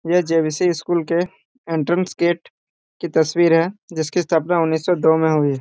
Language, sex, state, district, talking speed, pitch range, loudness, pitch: Hindi, male, Jharkhand, Jamtara, 170 wpm, 160-175 Hz, -19 LUFS, 170 Hz